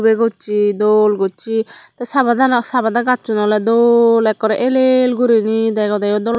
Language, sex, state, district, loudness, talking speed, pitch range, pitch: Chakma, female, Tripura, Dhalai, -15 LUFS, 140 wpm, 215-245 Hz, 225 Hz